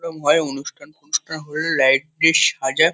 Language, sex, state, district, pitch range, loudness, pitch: Bengali, male, West Bengal, Kolkata, 140-160 Hz, -18 LUFS, 155 Hz